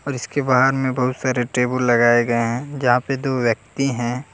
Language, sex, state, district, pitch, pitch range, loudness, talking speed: Hindi, male, Jharkhand, Deoghar, 125 Hz, 120-135 Hz, -19 LUFS, 195 wpm